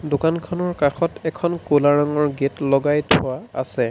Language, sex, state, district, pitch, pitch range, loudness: Assamese, male, Assam, Sonitpur, 150 Hz, 145-165 Hz, -20 LUFS